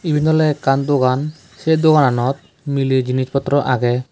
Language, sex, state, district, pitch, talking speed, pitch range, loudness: Chakma, male, Tripura, West Tripura, 140 Hz, 145 wpm, 130-155 Hz, -17 LUFS